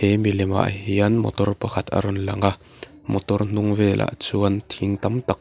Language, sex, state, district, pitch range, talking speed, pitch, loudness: Mizo, male, Mizoram, Aizawl, 100-105 Hz, 200 wpm, 100 Hz, -21 LUFS